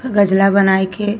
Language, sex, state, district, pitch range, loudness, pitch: Bhojpuri, female, Uttar Pradesh, Gorakhpur, 190-205 Hz, -14 LUFS, 200 Hz